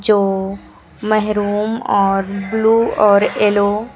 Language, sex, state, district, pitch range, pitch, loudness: Hindi, female, Uttar Pradesh, Lucknow, 200-215 Hz, 205 Hz, -15 LUFS